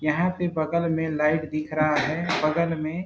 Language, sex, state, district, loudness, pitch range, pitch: Hindi, male, Chhattisgarh, Bastar, -24 LUFS, 155-170 Hz, 155 Hz